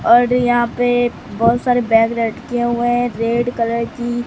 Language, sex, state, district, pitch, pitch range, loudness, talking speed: Hindi, female, Bihar, Katihar, 240 Hz, 230-245 Hz, -16 LUFS, 170 wpm